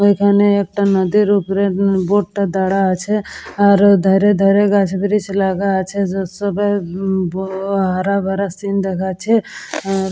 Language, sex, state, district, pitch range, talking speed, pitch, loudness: Bengali, female, West Bengal, Purulia, 190-200 Hz, 135 wpm, 195 Hz, -16 LUFS